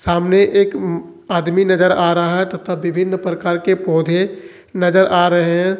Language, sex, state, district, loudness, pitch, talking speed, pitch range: Hindi, male, Jharkhand, Ranchi, -16 LUFS, 180 Hz, 165 wpm, 175-190 Hz